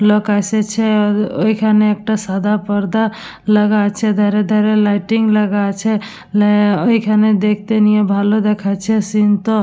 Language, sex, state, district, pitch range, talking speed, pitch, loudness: Bengali, female, West Bengal, Dakshin Dinajpur, 205-215 Hz, 130 wpm, 210 Hz, -15 LUFS